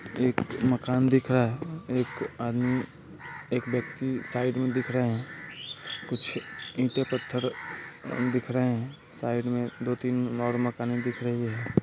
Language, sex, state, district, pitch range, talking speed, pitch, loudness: Hindi, male, Bihar, Vaishali, 120-125 Hz, 145 wpm, 125 Hz, -29 LUFS